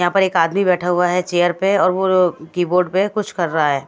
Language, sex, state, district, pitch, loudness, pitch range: Hindi, female, Odisha, Malkangiri, 180 Hz, -17 LUFS, 175-190 Hz